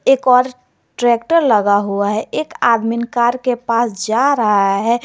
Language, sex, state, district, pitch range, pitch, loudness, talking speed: Hindi, female, Jharkhand, Garhwa, 210-250 Hz, 235 Hz, -15 LUFS, 165 wpm